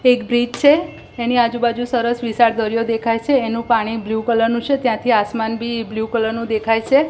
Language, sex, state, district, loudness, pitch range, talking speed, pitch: Gujarati, female, Gujarat, Gandhinagar, -18 LUFS, 225-240 Hz, 200 wpm, 230 Hz